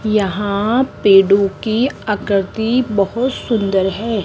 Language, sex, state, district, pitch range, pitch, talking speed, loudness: Hindi, female, Rajasthan, Jaipur, 200-230 Hz, 210 Hz, 100 wpm, -16 LUFS